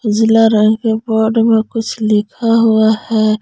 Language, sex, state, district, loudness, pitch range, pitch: Hindi, female, Jharkhand, Garhwa, -13 LUFS, 220-225 Hz, 220 Hz